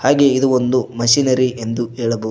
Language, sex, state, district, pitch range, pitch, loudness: Kannada, male, Karnataka, Koppal, 115-130 Hz, 125 Hz, -16 LUFS